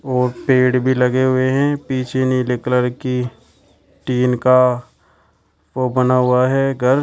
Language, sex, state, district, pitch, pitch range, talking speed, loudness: Hindi, male, Uttar Pradesh, Shamli, 125 Hz, 125-130 Hz, 145 wpm, -17 LUFS